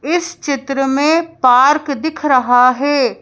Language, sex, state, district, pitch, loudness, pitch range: Hindi, female, Madhya Pradesh, Bhopal, 280 Hz, -14 LUFS, 260-315 Hz